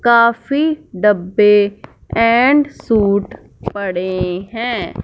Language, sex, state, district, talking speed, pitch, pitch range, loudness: Hindi, female, Punjab, Fazilka, 70 wpm, 215 Hz, 200-240 Hz, -15 LUFS